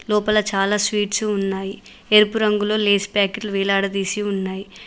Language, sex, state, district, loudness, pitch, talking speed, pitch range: Telugu, female, Telangana, Mahabubabad, -19 LUFS, 205 Hz, 125 wpm, 195-210 Hz